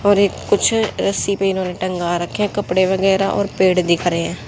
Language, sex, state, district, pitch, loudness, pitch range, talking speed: Hindi, female, Haryana, Jhajjar, 190 Hz, -17 LUFS, 180-200 Hz, 225 wpm